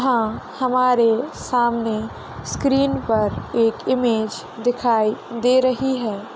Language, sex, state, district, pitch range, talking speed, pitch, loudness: Hindi, female, Maharashtra, Solapur, 225-255 Hz, 105 wpm, 235 Hz, -20 LUFS